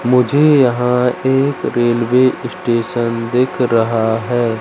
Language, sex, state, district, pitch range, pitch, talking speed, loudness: Hindi, male, Madhya Pradesh, Katni, 115-130 Hz, 125 Hz, 105 wpm, -15 LUFS